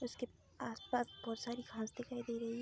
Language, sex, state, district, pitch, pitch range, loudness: Hindi, female, Bihar, Darbhanga, 240 Hz, 230-245 Hz, -44 LUFS